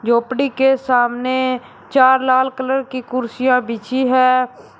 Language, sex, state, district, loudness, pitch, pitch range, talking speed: Hindi, male, Uttar Pradesh, Shamli, -17 LUFS, 255 Hz, 250-260 Hz, 125 wpm